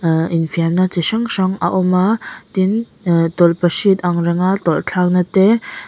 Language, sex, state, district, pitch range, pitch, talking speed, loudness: Mizo, female, Mizoram, Aizawl, 170-195 Hz, 180 Hz, 185 wpm, -16 LUFS